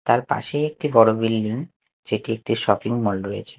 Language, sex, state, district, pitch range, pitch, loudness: Bengali, male, Chhattisgarh, Raipur, 105-135 Hz, 115 Hz, -22 LUFS